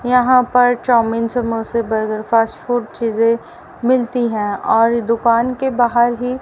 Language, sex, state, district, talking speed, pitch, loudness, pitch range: Hindi, female, Haryana, Rohtak, 150 wpm, 235 Hz, -16 LUFS, 230-245 Hz